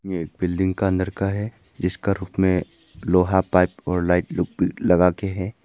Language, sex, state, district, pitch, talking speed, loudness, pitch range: Hindi, male, Arunachal Pradesh, Papum Pare, 95 Hz, 180 wpm, -22 LUFS, 90-95 Hz